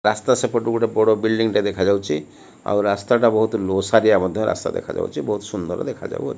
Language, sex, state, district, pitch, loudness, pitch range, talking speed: Odia, male, Odisha, Malkangiri, 110 Hz, -20 LUFS, 100-115 Hz, 180 wpm